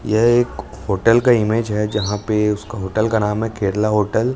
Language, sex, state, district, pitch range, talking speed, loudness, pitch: Hindi, male, Chhattisgarh, Raipur, 105-115 Hz, 220 wpm, -18 LUFS, 110 Hz